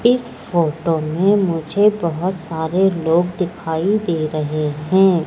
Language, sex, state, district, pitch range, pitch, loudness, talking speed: Hindi, female, Madhya Pradesh, Katni, 160-190 Hz, 170 Hz, -18 LUFS, 125 wpm